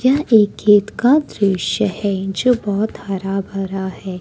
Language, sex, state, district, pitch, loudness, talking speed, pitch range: Hindi, female, Jharkhand, Ranchi, 200 Hz, -17 LUFS, 145 wpm, 195-220 Hz